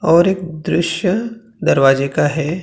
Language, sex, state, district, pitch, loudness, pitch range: Hindi, male, Maharashtra, Gondia, 170 Hz, -16 LUFS, 155-185 Hz